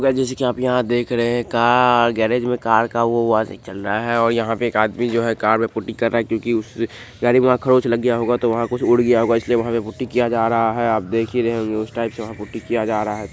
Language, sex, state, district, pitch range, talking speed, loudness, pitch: Hindi, male, Bihar, Supaul, 115-120 Hz, 305 wpm, -19 LUFS, 115 Hz